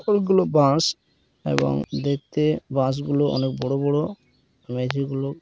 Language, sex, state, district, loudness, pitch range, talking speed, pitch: Bengali, male, West Bengal, Dakshin Dinajpur, -23 LUFS, 130-155 Hz, 120 wpm, 140 Hz